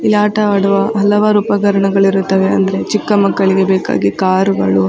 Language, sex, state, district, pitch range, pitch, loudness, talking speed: Kannada, female, Karnataka, Dakshina Kannada, 190-205 Hz, 195 Hz, -13 LUFS, 145 wpm